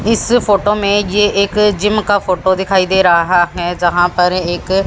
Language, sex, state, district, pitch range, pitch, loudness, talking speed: Hindi, female, Haryana, Jhajjar, 180-205 Hz, 190 Hz, -13 LUFS, 185 wpm